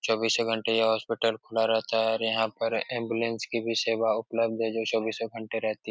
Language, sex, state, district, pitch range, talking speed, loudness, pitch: Hindi, male, Uttar Pradesh, Etah, 110-115 Hz, 215 wpm, -28 LUFS, 115 Hz